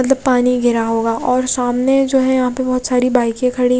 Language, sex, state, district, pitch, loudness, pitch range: Hindi, female, Odisha, Khordha, 250 Hz, -15 LUFS, 245-260 Hz